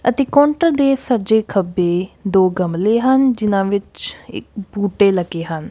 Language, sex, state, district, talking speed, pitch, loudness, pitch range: Punjabi, female, Punjab, Kapurthala, 145 wpm, 205 Hz, -16 LUFS, 185-255 Hz